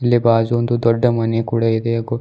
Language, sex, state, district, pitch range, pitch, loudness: Kannada, male, Karnataka, Bidar, 115-120 Hz, 115 Hz, -17 LUFS